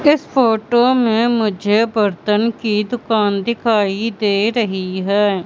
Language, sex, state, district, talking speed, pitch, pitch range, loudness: Hindi, female, Madhya Pradesh, Katni, 120 wpm, 220 Hz, 205-235 Hz, -16 LUFS